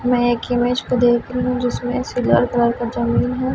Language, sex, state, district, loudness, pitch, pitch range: Hindi, female, Chhattisgarh, Raipur, -18 LUFS, 245 Hz, 240-250 Hz